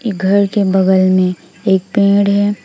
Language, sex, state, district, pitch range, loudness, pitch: Hindi, female, West Bengal, Alipurduar, 185-200 Hz, -13 LUFS, 195 Hz